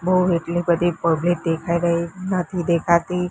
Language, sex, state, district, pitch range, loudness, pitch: Gujarati, female, Gujarat, Gandhinagar, 170-180 Hz, -20 LUFS, 175 Hz